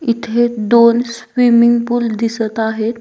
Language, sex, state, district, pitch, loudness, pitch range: Marathi, female, Maharashtra, Dhule, 235 Hz, -14 LUFS, 225-235 Hz